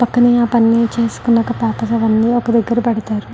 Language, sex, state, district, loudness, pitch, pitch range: Telugu, female, Andhra Pradesh, Guntur, -15 LUFS, 230 Hz, 225-235 Hz